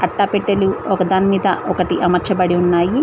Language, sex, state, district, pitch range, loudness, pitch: Telugu, female, Telangana, Mahabubabad, 180-195 Hz, -16 LUFS, 190 Hz